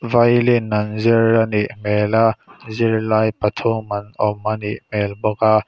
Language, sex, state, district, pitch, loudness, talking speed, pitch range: Mizo, male, Mizoram, Aizawl, 110 Hz, -18 LUFS, 160 wpm, 105-115 Hz